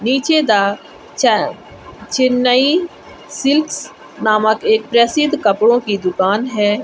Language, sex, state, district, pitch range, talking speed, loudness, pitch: Hindi, female, Jharkhand, Garhwa, 210-285 Hz, 115 wpm, -15 LUFS, 235 Hz